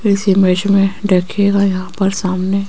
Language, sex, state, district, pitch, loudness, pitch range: Hindi, female, Rajasthan, Jaipur, 195 Hz, -14 LUFS, 185-200 Hz